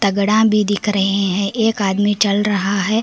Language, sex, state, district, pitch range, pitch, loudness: Hindi, female, Karnataka, Koppal, 200-210 Hz, 205 Hz, -16 LUFS